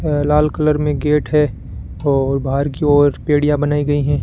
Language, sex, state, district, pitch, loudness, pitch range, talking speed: Hindi, male, Rajasthan, Bikaner, 145 Hz, -16 LUFS, 145-150 Hz, 200 wpm